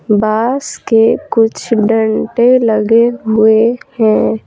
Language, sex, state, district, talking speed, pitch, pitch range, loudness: Hindi, female, Bihar, Patna, 95 wpm, 225 Hz, 220-235 Hz, -12 LUFS